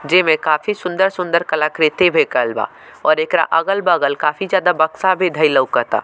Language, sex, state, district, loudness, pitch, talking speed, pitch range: Bhojpuri, male, Bihar, Muzaffarpur, -16 LUFS, 165 Hz, 170 wpm, 155-185 Hz